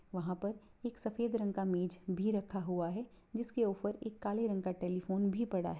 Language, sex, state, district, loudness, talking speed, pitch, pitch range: Hindi, female, Bihar, Purnia, -38 LUFS, 215 wpm, 200 Hz, 185-225 Hz